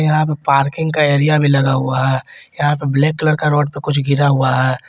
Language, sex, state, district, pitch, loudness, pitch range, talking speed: Hindi, male, Jharkhand, Garhwa, 145 Hz, -15 LUFS, 135-150 Hz, 245 wpm